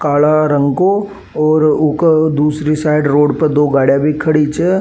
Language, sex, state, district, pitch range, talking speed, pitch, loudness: Rajasthani, male, Rajasthan, Nagaur, 145-155 Hz, 160 wpm, 150 Hz, -13 LUFS